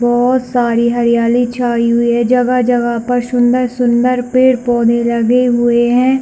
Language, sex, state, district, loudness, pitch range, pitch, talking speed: Hindi, female, Chhattisgarh, Bilaspur, -13 LUFS, 235-250 Hz, 240 Hz, 155 wpm